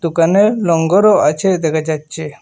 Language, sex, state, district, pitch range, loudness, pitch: Bengali, male, Assam, Hailakandi, 155-195 Hz, -13 LUFS, 165 Hz